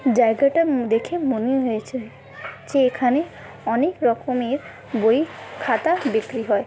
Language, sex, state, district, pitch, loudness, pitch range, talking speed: Bengali, female, West Bengal, Dakshin Dinajpur, 255 Hz, -21 LUFS, 230-280 Hz, 115 wpm